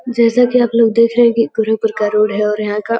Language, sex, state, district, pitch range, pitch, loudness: Hindi, female, Uttar Pradesh, Gorakhpur, 210-235 Hz, 230 Hz, -14 LUFS